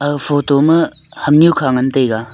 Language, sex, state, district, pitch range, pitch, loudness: Wancho, male, Arunachal Pradesh, Longding, 130-150 Hz, 145 Hz, -13 LUFS